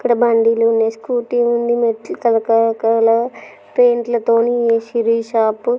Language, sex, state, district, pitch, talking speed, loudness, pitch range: Telugu, female, Andhra Pradesh, Srikakulam, 230 Hz, 145 wpm, -16 LUFS, 225-240 Hz